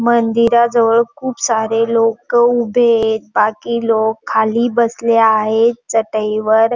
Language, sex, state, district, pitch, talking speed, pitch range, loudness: Marathi, female, Maharashtra, Dhule, 230 Hz, 105 wpm, 220-235 Hz, -14 LUFS